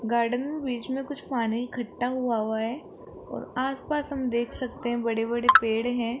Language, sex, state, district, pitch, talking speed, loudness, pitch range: Hindi, female, Rajasthan, Jaipur, 245 Hz, 185 wpm, -26 LUFS, 235-265 Hz